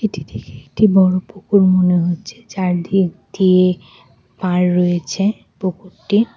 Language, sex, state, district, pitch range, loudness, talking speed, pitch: Bengali, female, West Bengal, Cooch Behar, 175-195 Hz, -16 LUFS, 95 wpm, 185 Hz